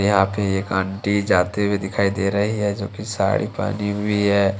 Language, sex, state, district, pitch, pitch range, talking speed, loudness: Hindi, male, Jharkhand, Deoghar, 100 Hz, 95-105 Hz, 210 wpm, -21 LUFS